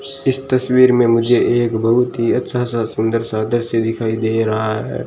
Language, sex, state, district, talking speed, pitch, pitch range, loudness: Hindi, male, Rajasthan, Bikaner, 190 wpm, 115 Hz, 110-125 Hz, -16 LUFS